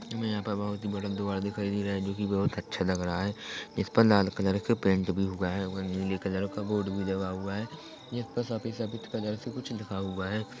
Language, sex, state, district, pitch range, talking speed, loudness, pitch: Hindi, male, Chhattisgarh, Korba, 95-110 Hz, 255 wpm, -31 LUFS, 100 Hz